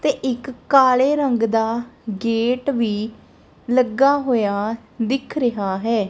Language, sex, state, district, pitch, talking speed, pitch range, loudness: Punjabi, female, Punjab, Kapurthala, 235 Hz, 120 wpm, 225-260 Hz, -20 LUFS